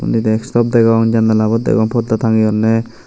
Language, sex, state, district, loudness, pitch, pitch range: Chakma, male, Tripura, Unakoti, -14 LUFS, 115 Hz, 110-115 Hz